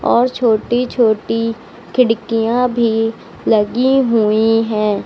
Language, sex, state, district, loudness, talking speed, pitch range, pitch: Hindi, female, Uttar Pradesh, Lucknow, -15 LUFS, 95 wpm, 220-240 Hz, 225 Hz